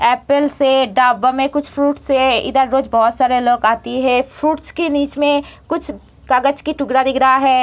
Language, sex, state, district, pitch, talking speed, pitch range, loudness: Hindi, female, Bihar, Saharsa, 265 Hz, 195 wpm, 255-285 Hz, -15 LUFS